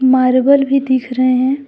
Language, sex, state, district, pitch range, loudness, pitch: Hindi, female, Jharkhand, Deoghar, 255-275 Hz, -13 LUFS, 260 Hz